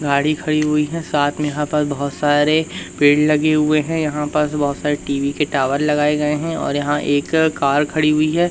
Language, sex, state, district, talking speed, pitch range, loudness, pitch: Hindi, male, Madhya Pradesh, Umaria, 220 wpm, 145-155 Hz, -18 LUFS, 150 Hz